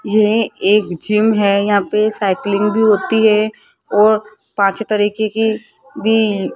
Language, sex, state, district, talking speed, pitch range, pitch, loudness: Hindi, female, Rajasthan, Jaipur, 130 wpm, 205-220 Hz, 210 Hz, -15 LUFS